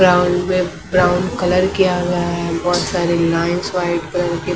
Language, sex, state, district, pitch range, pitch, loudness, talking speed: Hindi, female, Maharashtra, Mumbai Suburban, 175-180 Hz, 180 Hz, -17 LUFS, 170 wpm